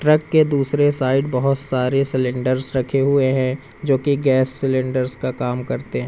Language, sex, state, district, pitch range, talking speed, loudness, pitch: Hindi, male, Madhya Pradesh, Umaria, 130-140 Hz, 175 wpm, -18 LUFS, 135 Hz